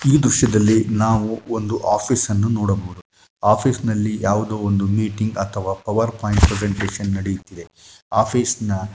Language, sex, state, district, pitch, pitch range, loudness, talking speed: Kannada, male, Karnataka, Shimoga, 105 Hz, 100-110 Hz, -19 LUFS, 115 wpm